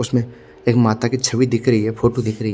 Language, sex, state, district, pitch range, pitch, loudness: Hindi, male, Odisha, Khordha, 115-125 Hz, 120 Hz, -18 LUFS